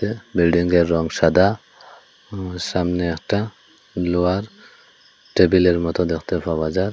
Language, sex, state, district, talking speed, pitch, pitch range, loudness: Bengali, male, Assam, Hailakandi, 105 wpm, 90 Hz, 85-95 Hz, -20 LUFS